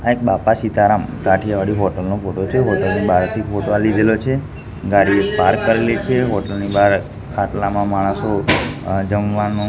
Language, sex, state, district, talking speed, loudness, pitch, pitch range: Gujarati, male, Gujarat, Gandhinagar, 165 wpm, -17 LUFS, 100 Hz, 100-110 Hz